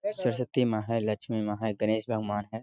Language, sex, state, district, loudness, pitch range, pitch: Hindi, male, Bihar, Jamui, -30 LUFS, 105-115 Hz, 110 Hz